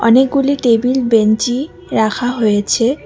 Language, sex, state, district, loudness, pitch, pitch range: Bengali, female, West Bengal, Alipurduar, -14 LUFS, 240 Hz, 225-260 Hz